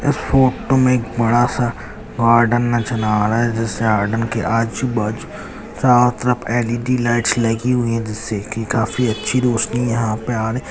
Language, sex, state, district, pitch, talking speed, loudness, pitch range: Hindi, male, Bihar, Jamui, 115 Hz, 185 wpm, -18 LUFS, 115-125 Hz